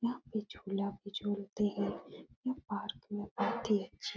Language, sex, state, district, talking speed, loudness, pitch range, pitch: Hindi, female, Uttar Pradesh, Etah, 185 wpm, -38 LUFS, 200-225 Hz, 205 Hz